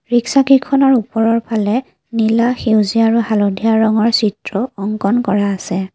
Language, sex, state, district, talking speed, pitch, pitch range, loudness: Assamese, female, Assam, Kamrup Metropolitan, 130 wpm, 225 Hz, 210-240 Hz, -15 LUFS